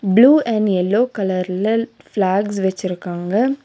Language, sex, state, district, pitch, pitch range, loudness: Tamil, female, Tamil Nadu, Nilgiris, 200 Hz, 185-230 Hz, -18 LUFS